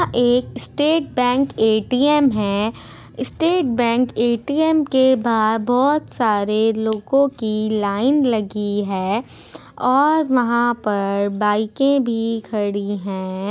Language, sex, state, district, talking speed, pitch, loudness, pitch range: Hindi, female, Bihar, Supaul, 120 wpm, 235 Hz, -18 LUFS, 210-265 Hz